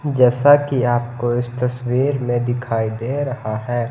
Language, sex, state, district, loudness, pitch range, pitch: Hindi, male, Himachal Pradesh, Shimla, -19 LUFS, 120-130 Hz, 125 Hz